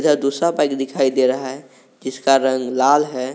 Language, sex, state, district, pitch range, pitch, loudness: Hindi, male, Jharkhand, Garhwa, 130-140 Hz, 135 Hz, -18 LUFS